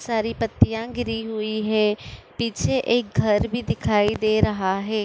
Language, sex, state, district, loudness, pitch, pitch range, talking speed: Hindi, female, Uttar Pradesh, Budaun, -23 LUFS, 220 Hz, 215-230 Hz, 155 wpm